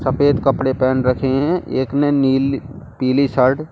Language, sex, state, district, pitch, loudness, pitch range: Hindi, male, Delhi, New Delhi, 135 Hz, -17 LUFS, 130-140 Hz